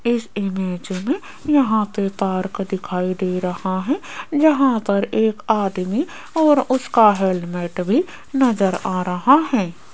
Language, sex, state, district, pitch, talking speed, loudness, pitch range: Hindi, female, Rajasthan, Jaipur, 200 Hz, 135 wpm, -19 LUFS, 185-265 Hz